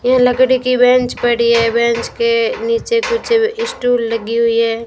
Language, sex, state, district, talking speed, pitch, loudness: Hindi, female, Rajasthan, Bikaner, 170 wpm, 250 Hz, -14 LUFS